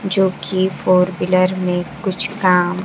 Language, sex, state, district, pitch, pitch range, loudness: Hindi, female, Bihar, Kaimur, 185 Hz, 180-190 Hz, -17 LUFS